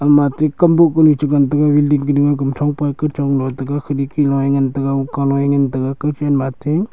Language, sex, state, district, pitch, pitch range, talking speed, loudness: Wancho, male, Arunachal Pradesh, Longding, 145 Hz, 135-150 Hz, 165 wpm, -16 LUFS